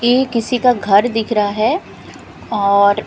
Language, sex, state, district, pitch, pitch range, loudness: Hindi, female, Punjab, Fazilka, 220 Hz, 205-240 Hz, -15 LUFS